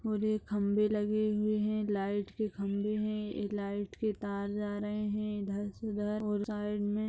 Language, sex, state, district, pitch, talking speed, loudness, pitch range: Hindi, female, Uttar Pradesh, Etah, 210 Hz, 205 wpm, -34 LUFS, 205-215 Hz